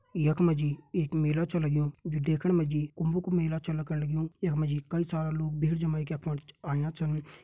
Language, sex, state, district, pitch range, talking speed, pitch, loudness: Hindi, male, Uttarakhand, Tehri Garhwal, 150-165 Hz, 200 wpm, 155 Hz, -30 LUFS